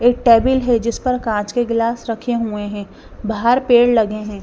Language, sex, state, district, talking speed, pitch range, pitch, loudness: Hindi, female, Bihar, West Champaran, 205 wpm, 215-245 Hz, 230 Hz, -17 LUFS